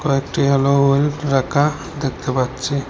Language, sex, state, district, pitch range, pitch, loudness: Bengali, male, Assam, Hailakandi, 135-145 Hz, 140 Hz, -18 LUFS